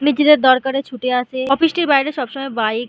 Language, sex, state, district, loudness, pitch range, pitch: Bengali, female, West Bengal, Malda, -16 LUFS, 250-290 Hz, 270 Hz